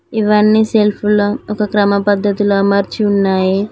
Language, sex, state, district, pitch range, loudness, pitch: Telugu, female, Telangana, Mahabubabad, 200-210 Hz, -13 LUFS, 205 Hz